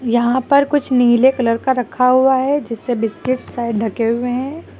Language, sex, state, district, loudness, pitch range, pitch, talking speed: Hindi, female, Uttar Pradesh, Lucknow, -16 LUFS, 235-265 Hz, 250 Hz, 190 wpm